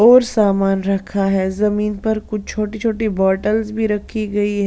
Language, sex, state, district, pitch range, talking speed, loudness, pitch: Hindi, female, Punjab, Pathankot, 195-220 Hz, 165 wpm, -18 LUFS, 210 Hz